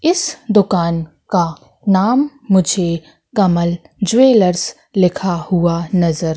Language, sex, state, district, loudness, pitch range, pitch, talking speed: Hindi, female, Madhya Pradesh, Katni, -16 LUFS, 170-220 Hz, 185 Hz, 95 wpm